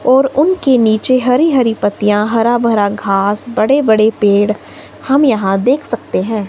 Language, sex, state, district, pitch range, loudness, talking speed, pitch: Hindi, female, Himachal Pradesh, Shimla, 210-260 Hz, -13 LUFS, 155 wpm, 225 Hz